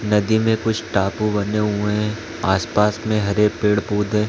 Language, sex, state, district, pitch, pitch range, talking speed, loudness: Hindi, male, Chhattisgarh, Balrampur, 105 Hz, 105-110 Hz, 165 wpm, -20 LUFS